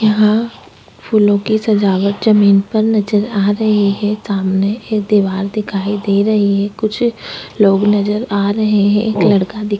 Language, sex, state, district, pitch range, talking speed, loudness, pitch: Hindi, female, Goa, North and South Goa, 200-215 Hz, 165 wpm, -14 LUFS, 205 Hz